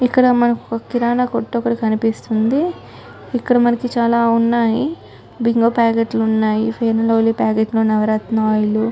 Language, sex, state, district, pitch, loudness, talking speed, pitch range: Telugu, female, Telangana, Nalgonda, 230 Hz, -17 LUFS, 130 wpm, 220-240 Hz